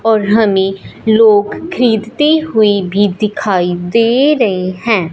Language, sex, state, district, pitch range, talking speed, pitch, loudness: Hindi, female, Punjab, Fazilka, 195-230 Hz, 115 wpm, 215 Hz, -12 LUFS